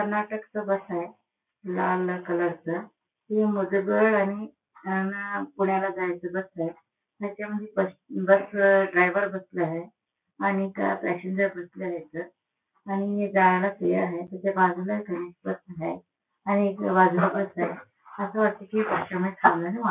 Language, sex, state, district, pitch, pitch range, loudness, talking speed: Marathi, female, Maharashtra, Solapur, 195 Hz, 180-200 Hz, -26 LUFS, 65 wpm